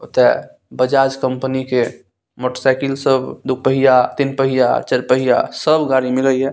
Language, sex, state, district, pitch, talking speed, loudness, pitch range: Maithili, male, Bihar, Saharsa, 130 Hz, 155 wpm, -16 LUFS, 130-135 Hz